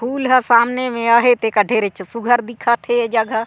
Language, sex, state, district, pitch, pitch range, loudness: Chhattisgarhi, female, Chhattisgarh, Sarguja, 235 Hz, 225-245 Hz, -16 LUFS